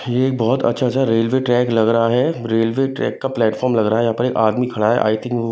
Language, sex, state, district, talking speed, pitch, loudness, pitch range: Hindi, male, Punjab, Kapurthala, 270 wpm, 120 Hz, -17 LUFS, 115-125 Hz